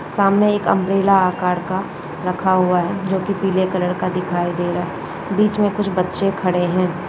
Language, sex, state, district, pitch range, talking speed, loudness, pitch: Hindi, female, Rajasthan, Nagaur, 180-195 Hz, 195 wpm, -19 LUFS, 185 Hz